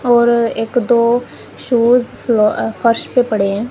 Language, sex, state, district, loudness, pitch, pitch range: Hindi, female, Punjab, Kapurthala, -14 LUFS, 235 Hz, 225-245 Hz